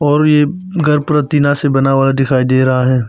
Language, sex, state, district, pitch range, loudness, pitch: Hindi, male, Arunachal Pradesh, Papum Pare, 130-150 Hz, -13 LUFS, 145 Hz